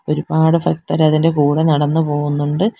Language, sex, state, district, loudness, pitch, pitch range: Malayalam, female, Kerala, Kollam, -16 LUFS, 155 Hz, 145-160 Hz